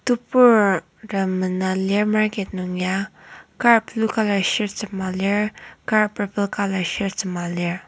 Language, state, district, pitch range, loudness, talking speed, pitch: Ao, Nagaland, Kohima, 190-215 Hz, -21 LUFS, 130 wpm, 200 Hz